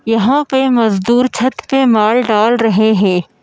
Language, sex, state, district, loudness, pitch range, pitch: Hindi, female, Madhya Pradesh, Bhopal, -12 LUFS, 215-255 Hz, 230 Hz